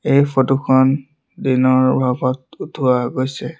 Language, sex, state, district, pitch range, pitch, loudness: Assamese, male, Assam, Sonitpur, 130-135 Hz, 130 Hz, -17 LUFS